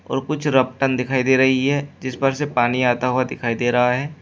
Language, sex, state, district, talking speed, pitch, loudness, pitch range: Hindi, male, Uttar Pradesh, Shamli, 240 wpm, 130 Hz, -19 LUFS, 125-140 Hz